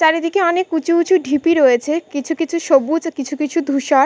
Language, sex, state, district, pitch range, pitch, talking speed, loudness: Bengali, female, West Bengal, Kolkata, 285-335 Hz, 320 Hz, 175 wpm, -17 LUFS